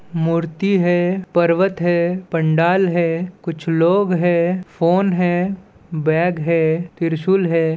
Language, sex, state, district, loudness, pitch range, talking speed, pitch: Hindi, female, Chhattisgarh, Balrampur, -18 LUFS, 165-185 Hz, 115 wpm, 175 Hz